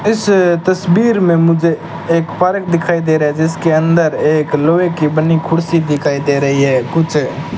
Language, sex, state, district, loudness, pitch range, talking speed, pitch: Hindi, male, Rajasthan, Bikaner, -13 LUFS, 155-170 Hz, 180 wpm, 165 Hz